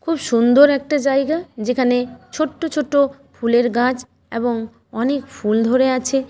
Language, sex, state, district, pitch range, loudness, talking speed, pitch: Bengali, female, West Bengal, Malda, 240-285 Hz, -18 LUFS, 135 wpm, 255 Hz